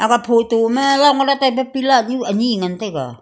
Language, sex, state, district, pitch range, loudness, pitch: Wancho, female, Arunachal Pradesh, Longding, 220-265 Hz, -16 LUFS, 240 Hz